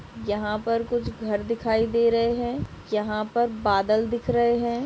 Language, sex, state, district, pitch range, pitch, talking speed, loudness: Hindi, female, Maharashtra, Dhule, 215-235 Hz, 230 Hz, 175 wpm, -25 LUFS